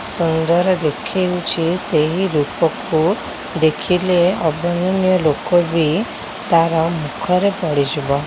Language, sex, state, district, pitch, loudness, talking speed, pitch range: Odia, female, Odisha, Khordha, 170 Hz, -17 LUFS, 50 wpm, 155-180 Hz